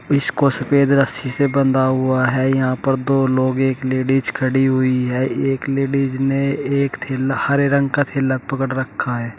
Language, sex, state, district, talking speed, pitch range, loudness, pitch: Hindi, male, Uttar Pradesh, Shamli, 180 wpm, 130-140 Hz, -18 LUFS, 135 Hz